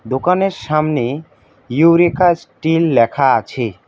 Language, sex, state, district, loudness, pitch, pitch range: Bengali, male, West Bengal, Alipurduar, -15 LUFS, 145 Hz, 125-165 Hz